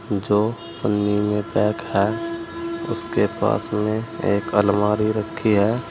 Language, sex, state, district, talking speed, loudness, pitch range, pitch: Hindi, male, Uttar Pradesh, Saharanpur, 120 wpm, -22 LUFS, 105-115 Hz, 105 Hz